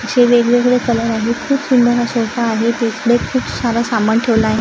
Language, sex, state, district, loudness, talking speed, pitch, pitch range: Marathi, female, Maharashtra, Gondia, -15 LUFS, 195 wpm, 235 Hz, 230-245 Hz